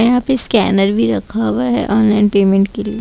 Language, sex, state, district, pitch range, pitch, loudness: Hindi, female, Bihar, Katihar, 195-240 Hz, 210 Hz, -14 LUFS